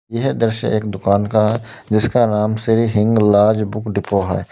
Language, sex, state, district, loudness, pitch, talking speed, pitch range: Hindi, male, Uttar Pradesh, Lalitpur, -17 LUFS, 110 Hz, 160 wpm, 105-115 Hz